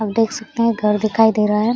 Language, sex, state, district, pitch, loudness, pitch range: Hindi, female, Jharkhand, Sahebganj, 220 Hz, -17 LUFS, 210-225 Hz